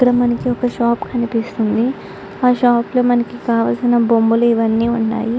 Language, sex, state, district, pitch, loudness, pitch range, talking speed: Telugu, female, Andhra Pradesh, Guntur, 235 Hz, -16 LUFS, 230-245 Hz, 145 wpm